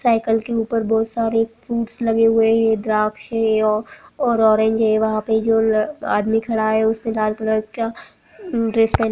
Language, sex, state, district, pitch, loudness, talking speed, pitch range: Hindi, female, Maharashtra, Aurangabad, 225 Hz, -19 LUFS, 185 wpm, 220-230 Hz